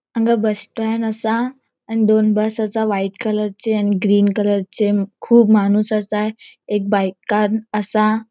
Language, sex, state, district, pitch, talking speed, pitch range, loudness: Konkani, female, Goa, North and South Goa, 215 Hz, 135 wpm, 205-220 Hz, -18 LUFS